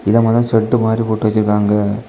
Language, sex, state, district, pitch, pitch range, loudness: Tamil, male, Tamil Nadu, Kanyakumari, 110 Hz, 105-115 Hz, -15 LUFS